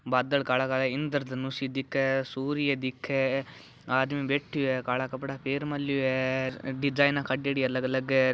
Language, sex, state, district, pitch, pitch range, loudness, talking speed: Marwari, male, Rajasthan, Churu, 135 Hz, 130-140 Hz, -29 LUFS, 150 wpm